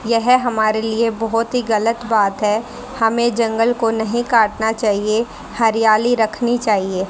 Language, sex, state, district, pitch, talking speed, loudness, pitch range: Hindi, female, Haryana, Charkhi Dadri, 225 Hz, 145 wpm, -17 LUFS, 215-235 Hz